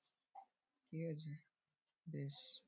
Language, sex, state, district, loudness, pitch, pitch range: Bengali, male, West Bengal, Paschim Medinipur, -49 LUFS, 165 Hz, 155-255 Hz